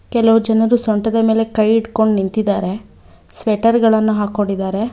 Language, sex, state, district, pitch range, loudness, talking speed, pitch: Kannada, female, Karnataka, Bangalore, 210-225 Hz, -15 LUFS, 120 wpm, 220 Hz